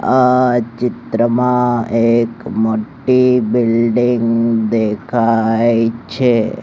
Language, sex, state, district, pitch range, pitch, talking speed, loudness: Gujarati, male, Gujarat, Gandhinagar, 115-125 Hz, 115 Hz, 65 wpm, -15 LUFS